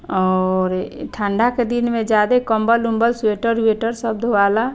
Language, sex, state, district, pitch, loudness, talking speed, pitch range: Bhojpuri, female, Bihar, Saran, 225 Hz, -18 LUFS, 165 wpm, 210-235 Hz